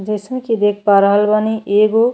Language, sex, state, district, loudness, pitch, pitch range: Bhojpuri, female, Uttar Pradesh, Ghazipur, -14 LUFS, 210 Hz, 205-220 Hz